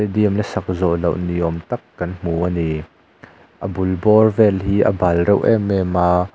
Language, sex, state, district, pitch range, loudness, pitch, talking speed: Mizo, male, Mizoram, Aizawl, 90-105 Hz, -18 LUFS, 95 Hz, 200 wpm